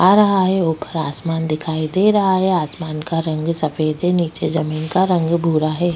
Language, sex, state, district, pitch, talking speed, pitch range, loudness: Hindi, female, Chhattisgarh, Bastar, 165 Hz, 200 wpm, 155-180 Hz, -18 LUFS